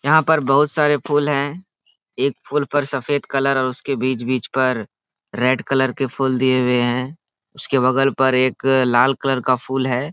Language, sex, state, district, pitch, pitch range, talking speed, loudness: Hindi, male, Jharkhand, Sahebganj, 135 Hz, 130-145 Hz, 190 wpm, -19 LUFS